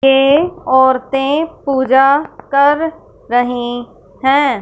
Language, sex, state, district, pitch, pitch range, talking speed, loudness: Hindi, female, Punjab, Fazilka, 270 Hz, 260-290 Hz, 80 wpm, -14 LUFS